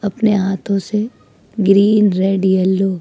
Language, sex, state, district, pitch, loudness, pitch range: Hindi, female, Delhi, New Delhi, 195 Hz, -15 LUFS, 190-210 Hz